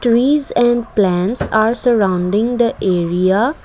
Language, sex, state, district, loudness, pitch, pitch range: English, female, Assam, Kamrup Metropolitan, -15 LUFS, 225 Hz, 190-240 Hz